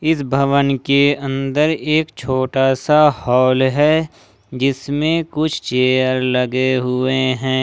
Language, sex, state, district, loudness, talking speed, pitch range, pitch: Hindi, male, Jharkhand, Ranchi, -16 LUFS, 120 wpm, 130-150 Hz, 135 Hz